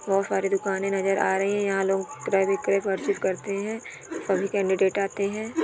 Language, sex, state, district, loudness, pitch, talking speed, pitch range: Hindi, female, Bihar, Jahanabad, -25 LUFS, 195 Hz, 160 wpm, 195-200 Hz